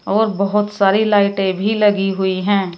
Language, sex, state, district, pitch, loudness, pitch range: Hindi, female, Uttar Pradesh, Shamli, 200 Hz, -16 LUFS, 195-210 Hz